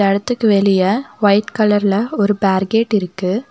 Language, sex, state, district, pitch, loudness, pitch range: Tamil, female, Tamil Nadu, Nilgiris, 205 Hz, -15 LUFS, 195-215 Hz